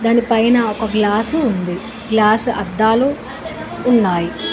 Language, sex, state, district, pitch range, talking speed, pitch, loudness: Telugu, female, Telangana, Mahabubabad, 205-235 Hz, 90 wpm, 220 Hz, -16 LUFS